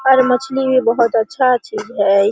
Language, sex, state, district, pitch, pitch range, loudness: Hindi, female, Bihar, Araria, 250 Hz, 220-260 Hz, -15 LUFS